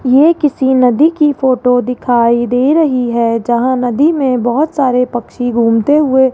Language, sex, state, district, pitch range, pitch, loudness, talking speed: Hindi, female, Rajasthan, Jaipur, 240-285 Hz, 255 Hz, -12 LUFS, 170 wpm